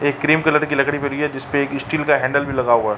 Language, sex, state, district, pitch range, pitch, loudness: Hindi, male, Uttar Pradesh, Varanasi, 135-150 Hz, 140 Hz, -18 LUFS